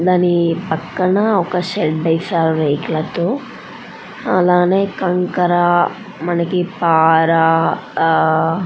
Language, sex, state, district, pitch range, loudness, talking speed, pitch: Telugu, female, Andhra Pradesh, Anantapur, 165-185 Hz, -16 LUFS, 95 wpm, 175 Hz